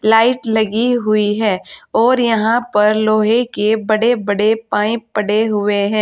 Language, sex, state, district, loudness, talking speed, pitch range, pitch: Hindi, female, Uttar Pradesh, Saharanpur, -15 LUFS, 150 wpm, 210-230 Hz, 220 Hz